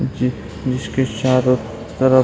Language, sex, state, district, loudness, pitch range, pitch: Hindi, male, Bihar, Saran, -19 LUFS, 115-130 Hz, 125 Hz